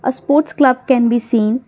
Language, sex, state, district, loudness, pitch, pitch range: English, female, Assam, Kamrup Metropolitan, -14 LUFS, 260 Hz, 235-265 Hz